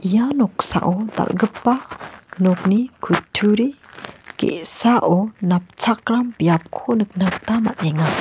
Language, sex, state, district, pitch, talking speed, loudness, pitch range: Garo, female, Meghalaya, West Garo Hills, 215 Hz, 80 wpm, -19 LUFS, 185-235 Hz